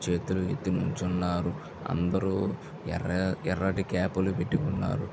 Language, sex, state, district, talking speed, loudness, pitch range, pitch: Telugu, male, Andhra Pradesh, Visakhapatnam, 105 wpm, -30 LUFS, 90-95 Hz, 95 Hz